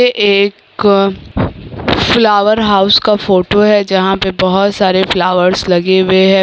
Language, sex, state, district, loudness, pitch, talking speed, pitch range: Hindi, female, Bihar, Kishanganj, -11 LUFS, 195 Hz, 140 wpm, 190-205 Hz